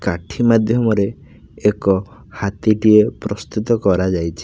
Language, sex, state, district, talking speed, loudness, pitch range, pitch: Odia, male, Odisha, Khordha, 80 wpm, -17 LUFS, 100-115 Hz, 105 Hz